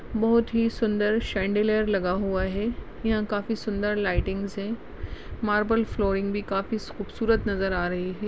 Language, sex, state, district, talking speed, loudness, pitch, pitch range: Hindi, female, Maharashtra, Nagpur, 160 wpm, -26 LUFS, 210 Hz, 195-225 Hz